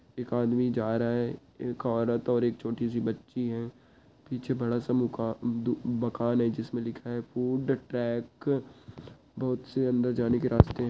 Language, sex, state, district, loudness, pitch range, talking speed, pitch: Hindi, male, Uttarakhand, Uttarkashi, -30 LUFS, 115-125 Hz, 170 wpm, 120 Hz